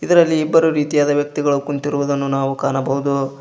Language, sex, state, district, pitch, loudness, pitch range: Kannada, male, Karnataka, Koppal, 145 Hz, -17 LUFS, 140-150 Hz